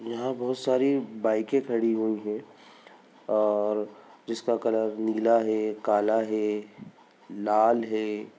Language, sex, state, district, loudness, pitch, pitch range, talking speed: Bhojpuri, male, Bihar, Saran, -27 LUFS, 110 Hz, 105-115 Hz, 105 wpm